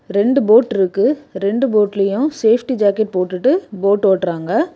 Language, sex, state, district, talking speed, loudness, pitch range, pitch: Tamil, female, Tamil Nadu, Kanyakumari, 115 wpm, -16 LUFS, 195-260 Hz, 210 Hz